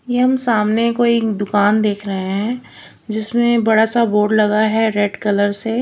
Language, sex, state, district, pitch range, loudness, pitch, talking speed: Hindi, female, Chandigarh, Chandigarh, 210-235 Hz, -16 LUFS, 220 Hz, 175 wpm